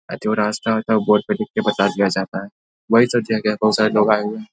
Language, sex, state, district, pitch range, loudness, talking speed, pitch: Hindi, male, Bihar, Saharsa, 105-110 Hz, -18 LUFS, 265 wpm, 105 Hz